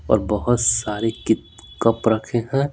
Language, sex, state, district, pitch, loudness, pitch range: Hindi, male, Bihar, Patna, 115 Hz, -20 LUFS, 110-120 Hz